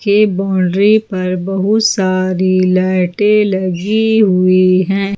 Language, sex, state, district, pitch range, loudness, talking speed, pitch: Hindi, female, Jharkhand, Ranchi, 185-210 Hz, -13 LUFS, 105 wpm, 190 Hz